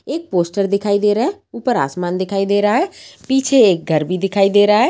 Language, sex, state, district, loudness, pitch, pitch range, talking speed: Hindi, female, Bihar, Saran, -16 LUFS, 205 Hz, 190-240 Hz, 245 wpm